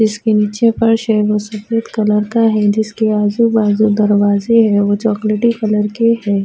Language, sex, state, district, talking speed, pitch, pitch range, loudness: Urdu, female, Uttar Pradesh, Budaun, 175 wpm, 215 Hz, 210-225 Hz, -14 LUFS